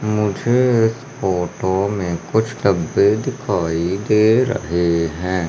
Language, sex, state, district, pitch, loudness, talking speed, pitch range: Hindi, male, Madhya Pradesh, Umaria, 100 Hz, -18 LUFS, 110 wpm, 90-110 Hz